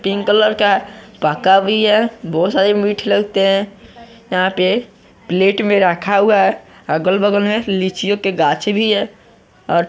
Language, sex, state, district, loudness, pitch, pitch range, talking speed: Hindi, male, Bihar, West Champaran, -15 LUFS, 200 Hz, 185-210 Hz, 165 wpm